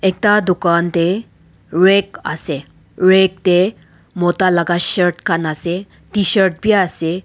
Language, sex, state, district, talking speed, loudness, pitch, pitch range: Nagamese, male, Nagaland, Dimapur, 125 wpm, -15 LUFS, 180 Hz, 170-190 Hz